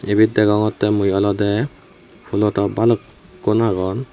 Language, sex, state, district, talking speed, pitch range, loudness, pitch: Chakma, male, Tripura, West Tripura, 115 wpm, 100-110 Hz, -18 LUFS, 105 Hz